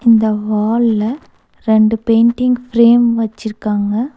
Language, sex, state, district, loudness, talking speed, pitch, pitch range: Tamil, female, Tamil Nadu, Nilgiris, -14 LUFS, 85 wpm, 225 Hz, 215-235 Hz